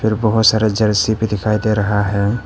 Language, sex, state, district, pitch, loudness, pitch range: Hindi, male, Arunachal Pradesh, Papum Pare, 110 Hz, -16 LUFS, 105-110 Hz